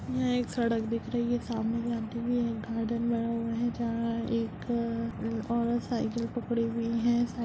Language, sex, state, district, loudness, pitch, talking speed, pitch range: Hindi, female, Bihar, Muzaffarpur, -31 LUFS, 230 Hz, 200 wpm, 230-235 Hz